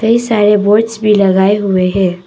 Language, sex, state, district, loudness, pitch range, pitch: Hindi, female, Arunachal Pradesh, Papum Pare, -11 LUFS, 190-215 Hz, 205 Hz